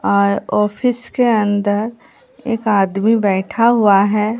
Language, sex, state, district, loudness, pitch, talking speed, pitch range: Hindi, female, Bihar, Katihar, -15 LUFS, 210 Hz, 120 wpm, 205-235 Hz